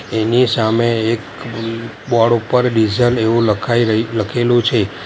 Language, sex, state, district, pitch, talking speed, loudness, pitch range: Gujarati, male, Gujarat, Valsad, 115 Hz, 140 wpm, -15 LUFS, 110-120 Hz